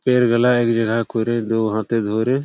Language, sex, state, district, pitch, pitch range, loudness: Bengali, male, West Bengal, Malda, 115 Hz, 110-120 Hz, -19 LUFS